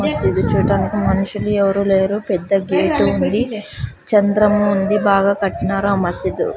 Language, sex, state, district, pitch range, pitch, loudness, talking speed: Telugu, female, Andhra Pradesh, Sri Satya Sai, 195-205 Hz, 200 Hz, -17 LUFS, 130 wpm